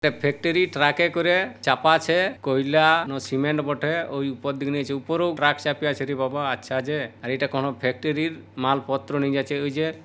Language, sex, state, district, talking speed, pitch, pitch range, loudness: Bengali, male, West Bengal, Purulia, 165 wpm, 145 Hz, 135-160 Hz, -23 LUFS